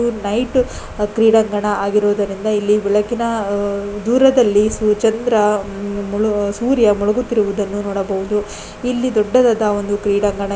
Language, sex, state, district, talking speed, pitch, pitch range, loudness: Kannada, female, Karnataka, Dakshina Kannada, 75 wpm, 210 Hz, 205-225 Hz, -17 LUFS